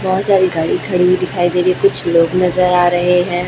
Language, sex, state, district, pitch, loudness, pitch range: Hindi, female, Chhattisgarh, Raipur, 180 Hz, -14 LUFS, 175-185 Hz